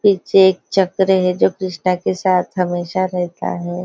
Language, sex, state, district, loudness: Hindi, female, Maharashtra, Nagpur, -17 LUFS